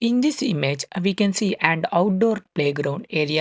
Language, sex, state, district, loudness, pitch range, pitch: English, male, Karnataka, Bangalore, -22 LUFS, 155-220 Hz, 195 Hz